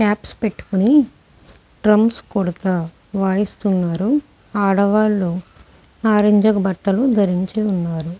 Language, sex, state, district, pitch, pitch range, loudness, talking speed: Telugu, female, Andhra Pradesh, Krishna, 200 Hz, 185-215 Hz, -18 LUFS, 75 wpm